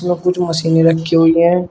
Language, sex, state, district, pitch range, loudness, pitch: Hindi, male, Uttar Pradesh, Shamli, 165-175 Hz, -13 LUFS, 170 Hz